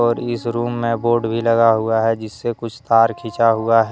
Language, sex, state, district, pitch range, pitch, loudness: Hindi, male, Jharkhand, Deoghar, 115-120 Hz, 115 Hz, -18 LUFS